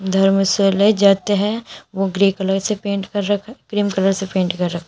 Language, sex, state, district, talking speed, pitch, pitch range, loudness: Hindi, female, Uttar Pradesh, Shamli, 195 wpm, 195 Hz, 195-205 Hz, -18 LUFS